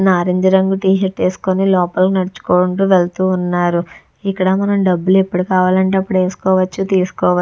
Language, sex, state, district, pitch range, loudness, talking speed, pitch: Telugu, female, Andhra Pradesh, Visakhapatnam, 180-190 Hz, -15 LUFS, 130 wpm, 185 Hz